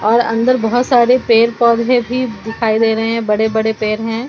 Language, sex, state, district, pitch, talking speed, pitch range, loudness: Hindi, female, Jharkhand, Ranchi, 230 Hz, 195 wpm, 220-240 Hz, -14 LUFS